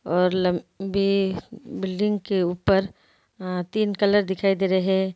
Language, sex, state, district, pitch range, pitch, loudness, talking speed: Hindi, female, Bihar, Gopalganj, 185-195 Hz, 190 Hz, -23 LUFS, 140 wpm